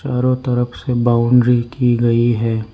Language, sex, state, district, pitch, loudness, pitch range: Hindi, male, Arunachal Pradesh, Lower Dibang Valley, 120 Hz, -16 LUFS, 120-125 Hz